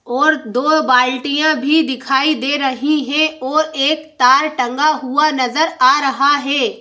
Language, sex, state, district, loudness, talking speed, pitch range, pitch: Hindi, female, Madhya Pradesh, Bhopal, -15 LUFS, 150 wpm, 260-310 Hz, 285 Hz